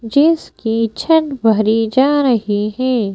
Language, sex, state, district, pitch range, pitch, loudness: Hindi, female, Madhya Pradesh, Bhopal, 220-280 Hz, 230 Hz, -15 LUFS